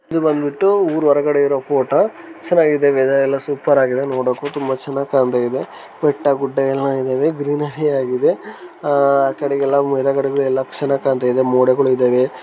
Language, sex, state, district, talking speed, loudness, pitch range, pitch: Kannada, male, Karnataka, Gulbarga, 145 wpm, -17 LUFS, 130-145 Hz, 140 Hz